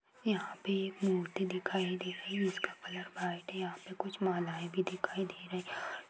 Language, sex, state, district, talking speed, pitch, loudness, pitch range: Hindi, female, Bihar, Sitamarhi, 205 wpm, 185 Hz, -37 LUFS, 180-195 Hz